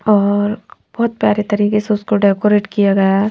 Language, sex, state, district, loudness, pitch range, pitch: Hindi, female, Bihar, Patna, -15 LUFS, 205-210 Hz, 210 Hz